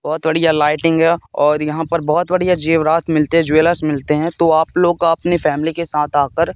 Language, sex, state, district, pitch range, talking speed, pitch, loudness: Hindi, male, Madhya Pradesh, Katni, 150-170 Hz, 200 wpm, 160 Hz, -15 LUFS